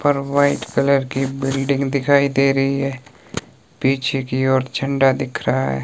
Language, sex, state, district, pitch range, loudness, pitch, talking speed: Hindi, male, Himachal Pradesh, Shimla, 135-140 Hz, -19 LUFS, 135 Hz, 165 wpm